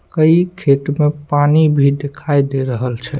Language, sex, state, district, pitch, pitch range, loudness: Maithili, male, Bihar, Samastipur, 145 Hz, 140-155 Hz, -15 LUFS